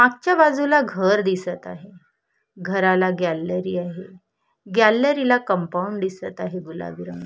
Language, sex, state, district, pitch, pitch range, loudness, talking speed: Marathi, female, Maharashtra, Solapur, 185 Hz, 180-220 Hz, -20 LUFS, 115 wpm